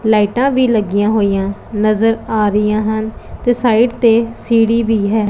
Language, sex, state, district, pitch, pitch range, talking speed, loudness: Punjabi, female, Punjab, Pathankot, 220 Hz, 210-230 Hz, 160 wpm, -14 LUFS